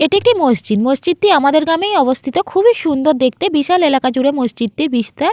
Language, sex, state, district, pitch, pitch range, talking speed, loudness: Bengali, female, West Bengal, Jalpaiguri, 295 Hz, 260-360 Hz, 190 wpm, -14 LUFS